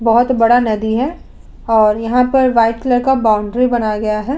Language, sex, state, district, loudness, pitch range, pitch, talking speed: Hindi, female, Uttar Pradesh, Budaun, -14 LUFS, 220-250 Hz, 230 Hz, 190 wpm